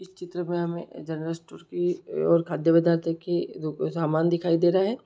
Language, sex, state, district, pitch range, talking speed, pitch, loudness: Hindi, male, Jharkhand, Sahebganj, 165-175 Hz, 165 wpm, 170 Hz, -26 LUFS